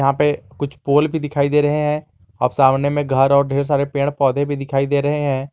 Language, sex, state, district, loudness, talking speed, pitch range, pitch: Hindi, male, Jharkhand, Garhwa, -18 LUFS, 250 wpm, 135-145 Hz, 140 Hz